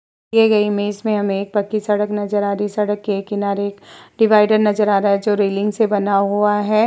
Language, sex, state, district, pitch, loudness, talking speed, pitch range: Hindi, female, Uttar Pradesh, Hamirpur, 205 Hz, -17 LUFS, 225 wpm, 200-210 Hz